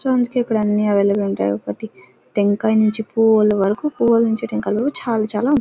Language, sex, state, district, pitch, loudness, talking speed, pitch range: Telugu, female, Karnataka, Bellary, 215 Hz, -18 LUFS, 180 wpm, 200-230 Hz